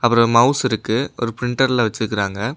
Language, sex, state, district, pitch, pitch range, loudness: Tamil, male, Tamil Nadu, Namakkal, 120 Hz, 110-125 Hz, -18 LUFS